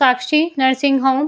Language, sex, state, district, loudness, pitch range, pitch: Hindi, female, Uttar Pradesh, Jyotiba Phule Nagar, -16 LUFS, 260-285 Hz, 270 Hz